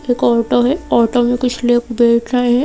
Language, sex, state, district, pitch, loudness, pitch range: Hindi, female, Madhya Pradesh, Bhopal, 245 Hz, -14 LUFS, 235-250 Hz